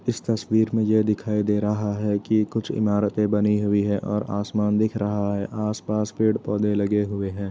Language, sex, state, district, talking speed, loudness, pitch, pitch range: Hindi, male, Uttar Pradesh, Etah, 210 wpm, -23 LUFS, 105 Hz, 105-110 Hz